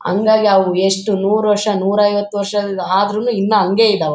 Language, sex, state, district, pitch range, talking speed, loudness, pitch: Kannada, male, Karnataka, Bellary, 195-210 Hz, 190 wpm, -15 LUFS, 205 Hz